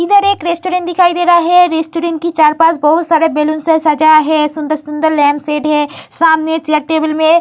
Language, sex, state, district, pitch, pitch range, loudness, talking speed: Hindi, female, Uttar Pradesh, Varanasi, 320 Hz, 305-340 Hz, -12 LUFS, 210 wpm